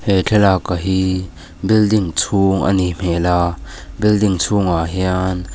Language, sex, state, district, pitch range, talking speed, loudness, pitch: Mizo, male, Mizoram, Aizawl, 90-100 Hz, 140 wpm, -16 LUFS, 95 Hz